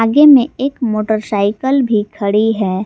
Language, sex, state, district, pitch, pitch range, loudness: Hindi, female, Jharkhand, Garhwa, 220 Hz, 210-265 Hz, -13 LUFS